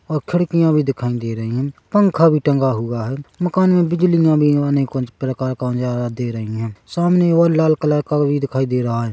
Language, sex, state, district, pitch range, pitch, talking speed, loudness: Hindi, male, Chhattisgarh, Bilaspur, 125-165 Hz, 140 Hz, 225 wpm, -18 LUFS